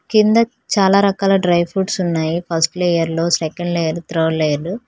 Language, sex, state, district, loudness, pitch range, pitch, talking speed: Telugu, female, Telangana, Hyderabad, -17 LUFS, 165-195 Hz, 175 Hz, 170 wpm